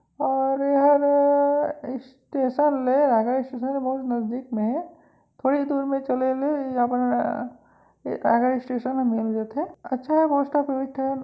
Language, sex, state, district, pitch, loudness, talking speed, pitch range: Chhattisgarhi, female, Chhattisgarh, Raigarh, 265 Hz, -23 LUFS, 100 wpm, 255-285 Hz